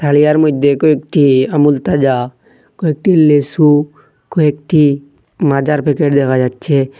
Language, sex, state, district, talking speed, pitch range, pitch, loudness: Bengali, male, Assam, Hailakandi, 105 wpm, 140-150 Hz, 145 Hz, -12 LUFS